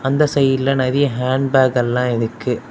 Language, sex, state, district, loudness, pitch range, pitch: Tamil, male, Tamil Nadu, Kanyakumari, -17 LUFS, 125-135 Hz, 130 Hz